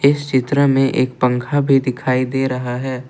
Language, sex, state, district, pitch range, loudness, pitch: Hindi, male, Assam, Kamrup Metropolitan, 130-135 Hz, -17 LUFS, 130 Hz